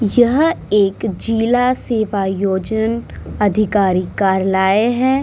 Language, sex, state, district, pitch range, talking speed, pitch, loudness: Hindi, female, Uttar Pradesh, Muzaffarnagar, 195-235 Hz, 80 wpm, 215 Hz, -16 LUFS